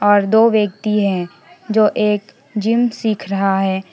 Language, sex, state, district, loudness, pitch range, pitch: Hindi, female, West Bengal, Alipurduar, -16 LUFS, 195-215 Hz, 205 Hz